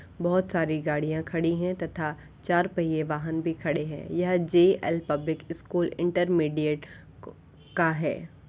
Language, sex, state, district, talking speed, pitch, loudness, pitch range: Hindi, female, Uttar Pradesh, Varanasi, 135 wpm, 165 Hz, -27 LUFS, 155-175 Hz